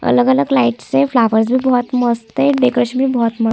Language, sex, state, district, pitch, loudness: Hindi, female, Chhattisgarh, Kabirdham, 230 Hz, -15 LUFS